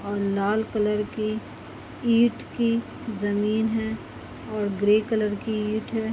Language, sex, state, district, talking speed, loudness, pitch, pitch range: Hindi, female, Chhattisgarh, Bastar, 135 wpm, -25 LUFS, 215 Hz, 210-225 Hz